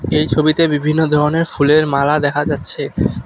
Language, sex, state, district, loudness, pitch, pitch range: Bengali, male, West Bengal, Alipurduar, -15 LUFS, 150 Hz, 145-155 Hz